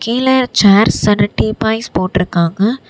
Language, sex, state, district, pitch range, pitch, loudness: Tamil, female, Tamil Nadu, Namakkal, 185-230 Hz, 210 Hz, -13 LUFS